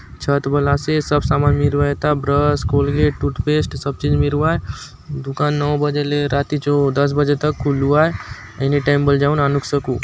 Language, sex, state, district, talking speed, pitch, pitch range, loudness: Halbi, male, Chhattisgarh, Bastar, 175 wpm, 145 Hz, 140-145 Hz, -18 LUFS